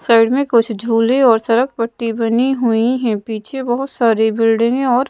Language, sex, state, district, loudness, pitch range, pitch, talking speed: Hindi, female, Madhya Pradesh, Bhopal, -15 LUFS, 225-255 Hz, 230 Hz, 175 wpm